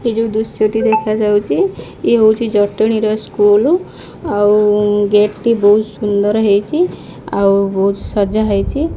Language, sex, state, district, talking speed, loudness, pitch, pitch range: Odia, female, Odisha, Khordha, 60 wpm, -14 LUFS, 215 Hz, 205-220 Hz